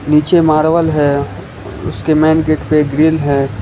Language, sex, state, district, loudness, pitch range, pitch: Hindi, male, Gujarat, Valsad, -13 LUFS, 140-155 Hz, 155 Hz